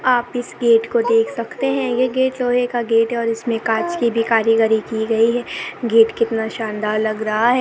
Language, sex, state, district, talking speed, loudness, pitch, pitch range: Hindi, female, Chhattisgarh, Bastar, 215 wpm, -18 LUFS, 230 Hz, 225-250 Hz